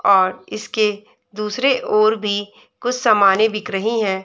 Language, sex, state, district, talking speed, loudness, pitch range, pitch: Hindi, female, Uttar Pradesh, Budaun, 140 wpm, -18 LUFS, 200-220 Hz, 210 Hz